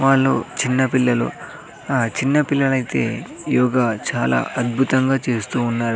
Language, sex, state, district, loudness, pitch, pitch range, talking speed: Telugu, male, Andhra Pradesh, Sri Satya Sai, -19 LUFS, 125 Hz, 120-135 Hz, 100 wpm